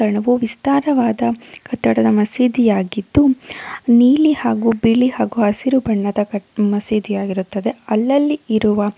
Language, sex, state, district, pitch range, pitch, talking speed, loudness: Kannada, female, Karnataka, Dakshina Kannada, 210-250 Hz, 230 Hz, 85 wpm, -16 LUFS